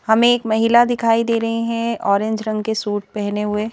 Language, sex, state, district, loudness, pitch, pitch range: Hindi, female, Madhya Pradesh, Bhopal, -18 LUFS, 220 Hz, 210-230 Hz